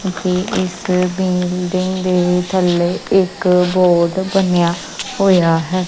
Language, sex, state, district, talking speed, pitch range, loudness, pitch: Punjabi, female, Punjab, Kapurthala, 110 wpm, 180-185 Hz, -16 LUFS, 180 Hz